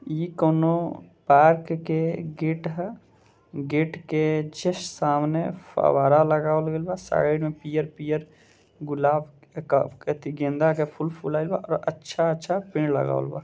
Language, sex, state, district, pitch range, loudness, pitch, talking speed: Bhojpuri, male, Bihar, Gopalganj, 150-165 Hz, -24 LUFS, 155 Hz, 145 wpm